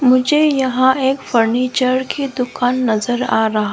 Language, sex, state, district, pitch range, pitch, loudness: Hindi, female, Arunachal Pradesh, Lower Dibang Valley, 245-265 Hz, 255 Hz, -16 LUFS